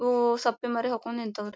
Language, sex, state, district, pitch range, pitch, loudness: Kannada, female, Karnataka, Gulbarga, 230-240 Hz, 235 Hz, -28 LUFS